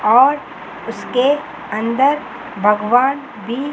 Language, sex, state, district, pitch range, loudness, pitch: Hindi, female, Chandigarh, Chandigarh, 230-285 Hz, -17 LUFS, 255 Hz